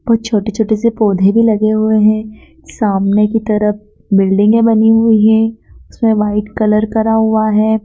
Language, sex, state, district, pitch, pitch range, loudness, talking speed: Hindi, female, Madhya Pradesh, Dhar, 215 Hz, 210-225 Hz, -12 LUFS, 170 wpm